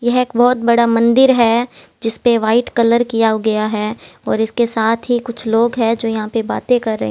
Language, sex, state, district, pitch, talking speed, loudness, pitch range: Hindi, female, Haryana, Jhajjar, 230 Hz, 220 wpm, -15 LUFS, 225-240 Hz